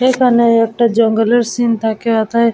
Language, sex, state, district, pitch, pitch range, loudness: Bengali, female, West Bengal, Jalpaiguri, 230 Hz, 225-240 Hz, -13 LUFS